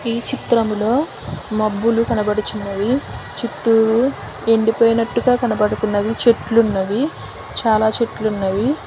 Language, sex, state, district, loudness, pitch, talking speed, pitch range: Telugu, female, Telangana, Hyderabad, -18 LUFS, 225 Hz, 70 wpm, 215-235 Hz